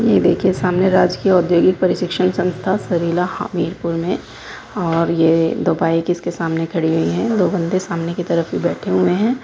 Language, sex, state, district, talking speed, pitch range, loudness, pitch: Hindi, female, Uttar Pradesh, Hamirpur, 180 wpm, 165-185 Hz, -17 LUFS, 175 Hz